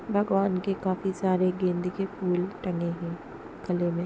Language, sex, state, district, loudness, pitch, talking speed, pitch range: Hindi, female, Bihar, East Champaran, -28 LUFS, 185 Hz, 160 wpm, 180-195 Hz